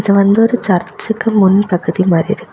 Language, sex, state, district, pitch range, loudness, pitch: Tamil, female, Tamil Nadu, Kanyakumari, 180-220 Hz, -13 LUFS, 200 Hz